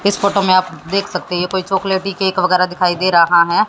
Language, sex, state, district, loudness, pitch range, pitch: Hindi, female, Haryana, Jhajjar, -15 LUFS, 180-195 Hz, 185 Hz